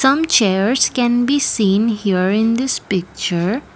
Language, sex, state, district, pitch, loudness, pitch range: English, female, Assam, Kamrup Metropolitan, 225 Hz, -16 LUFS, 195-260 Hz